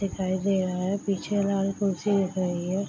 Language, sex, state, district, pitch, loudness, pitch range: Hindi, female, Bihar, Darbhanga, 195 Hz, -27 LUFS, 185-200 Hz